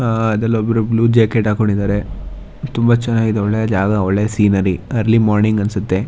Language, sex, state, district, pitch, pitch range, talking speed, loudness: Kannada, male, Karnataka, Shimoga, 110 Hz, 100-115 Hz, 150 wpm, -16 LUFS